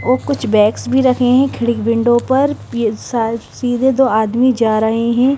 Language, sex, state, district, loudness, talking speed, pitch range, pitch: Hindi, female, Himachal Pradesh, Shimla, -15 LUFS, 155 wpm, 225-260 Hz, 240 Hz